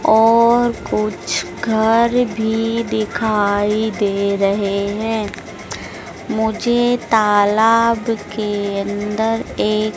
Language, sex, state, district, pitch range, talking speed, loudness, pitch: Hindi, female, Madhya Pradesh, Dhar, 205-225 Hz, 80 wpm, -17 LUFS, 220 Hz